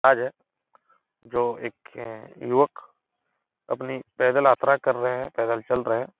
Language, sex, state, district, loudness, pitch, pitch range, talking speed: Hindi, male, Uttar Pradesh, Etah, -24 LUFS, 125 Hz, 120-130 Hz, 155 wpm